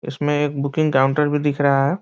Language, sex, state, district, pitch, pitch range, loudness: Hindi, male, Bihar, Muzaffarpur, 145 Hz, 140-150 Hz, -19 LUFS